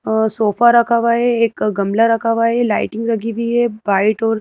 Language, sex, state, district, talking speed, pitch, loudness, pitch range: Hindi, female, Madhya Pradesh, Bhopal, 230 wpm, 230 Hz, -15 LUFS, 215-235 Hz